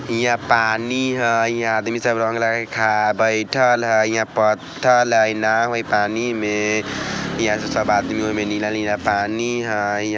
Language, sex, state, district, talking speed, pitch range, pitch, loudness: Bajjika, male, Bihar, Vaishali, 165 wpm, 105-115 Hz, 110 Hz, -19 LUFS